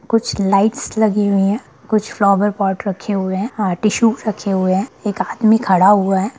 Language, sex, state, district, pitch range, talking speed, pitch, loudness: Hindi, female, Bihar, Sitamarhi, 195-215 Hz, 195 wpm, 205 Hz, -16 LUFS